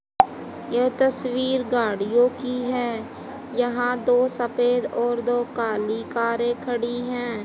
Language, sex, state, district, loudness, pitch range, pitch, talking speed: Hindi, female, Haryana, Jhajjar, -23 LUFS, 235-250 Hz, 245 Hz, 115 wpm